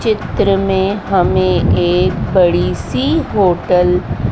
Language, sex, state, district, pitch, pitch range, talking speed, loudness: Hindi, female, Madhya Pradesh, Dhar, 180 Hz, 125-195 Hz, 95 wpm, -14 LUFS